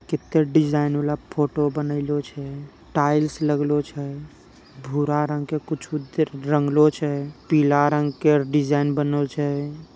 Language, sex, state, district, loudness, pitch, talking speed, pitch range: Angika, female, Bihar, Begusarai, -22 LUFS, 145 Hz, 125 wpm, 145-150 Hz